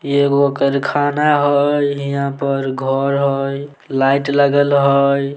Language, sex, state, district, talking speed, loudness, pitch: Maithili, male, Bihar, Samastipur, 125 wpm, -16 LUFS, 140 Hz